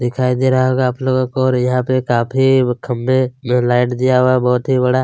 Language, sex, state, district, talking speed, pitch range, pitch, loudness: Hindi, male, Chhattisgarh, Kabirdham, 215 wpm, 125-130 Hz, 130 Hz, -15 LUFS